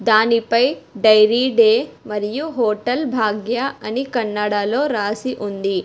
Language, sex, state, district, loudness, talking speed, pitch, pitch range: Telugu, female, Telangana, Hyderabad, -18 LUFS, 100 wpm, 225 Hz, 210-255 Hz